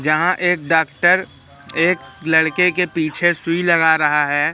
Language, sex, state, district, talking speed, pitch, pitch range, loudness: Hindi, male, Madhya Pradesh, Katni, 145 wpm, 165 Hz, 155-175 Hz, -16 LUFS